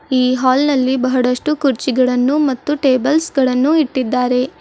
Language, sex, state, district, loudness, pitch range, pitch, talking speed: Kannada, female, Karnataka, Bidar, -15 LUFS, 255-285 Hz, 260 Hz, 115 wpm